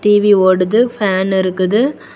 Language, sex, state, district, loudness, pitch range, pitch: Tamil, female, Tamil Nadu, Kanyakumari, -13 LUFS, 185-215 Hz, 200 Hz